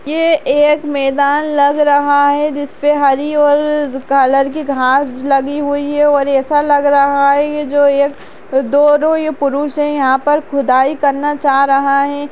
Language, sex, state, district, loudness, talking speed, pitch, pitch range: Kumaoni, female, Uttarakhand, Uttarkashi, -13 LUFS, 165 wpm, 285 Hz, 275-295 Hz